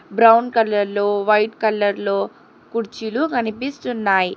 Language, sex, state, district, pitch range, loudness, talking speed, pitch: Telugu, female, Telangana, Hyderabad, 205-230 Hz, -19 LUFS, 80 wpm, 220 Hz